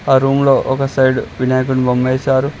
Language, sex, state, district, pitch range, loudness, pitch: Telugu, male, Telangana, Mahabubabad, 130-135 Hz, -15 LUFS, 130 Hz